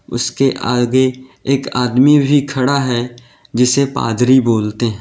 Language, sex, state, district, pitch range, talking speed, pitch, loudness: Hindi, male, Uttar Pradesh, Lalitpur, 120-135 Hz, 130 wpm, 125 Hz, -15 LUFS